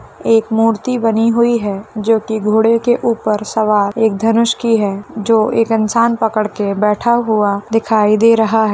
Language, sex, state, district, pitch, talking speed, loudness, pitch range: Hindi, female, Bihar, Bhagalpur, 225 Hz, 180 wpm, -14 LUFS, 215-230 Hz